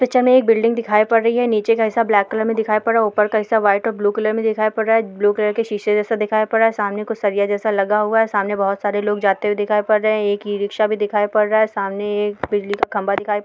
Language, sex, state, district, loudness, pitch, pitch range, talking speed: Hindi, female, Bihar, Bhagalpur, -18 LUFS, 210 Hz, 205-225 Hz, 310 wpm